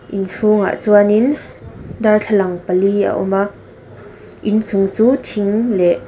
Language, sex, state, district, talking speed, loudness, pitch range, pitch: Mizo, female, Mizoram, Aizawl, 120 wpm, -15 LUFS, 195-215 Hz, 205 Hz